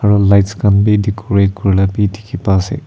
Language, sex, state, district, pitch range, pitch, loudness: Nagamese, male, Nagaland, Kohima, 100-105 Hz, 100 Hz, -13 LUFS